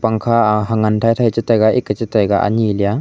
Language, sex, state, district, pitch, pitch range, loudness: Wancho, male, Arunachal Pradesh, Longding, 110 Hz, 105-115 Hz, -15 LUFS